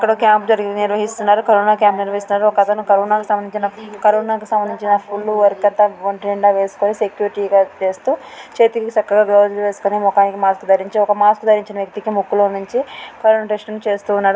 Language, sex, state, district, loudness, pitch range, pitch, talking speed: Telugu, female, Telangana, Karimnagar, -16 LUFS, 200-215 Hz, 205 Hz, 170 wpm